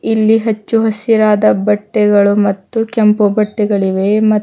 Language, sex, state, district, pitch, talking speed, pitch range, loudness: Kannada, female, Karnataka, Bidar, 210 Hz, 110 wpm, 205-220 Hz, -13 LUFS